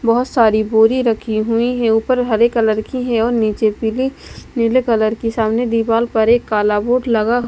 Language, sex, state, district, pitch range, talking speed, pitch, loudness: Hindi, female, Bihar, West Champaran, 220-240 Hz, 185 wpm, 230 Hz, -16 LUFS